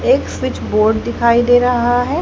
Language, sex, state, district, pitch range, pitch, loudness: Hindi, female, Haryana, Jhajjar, 235-250 Hz, 245 Hz, -14 LUFS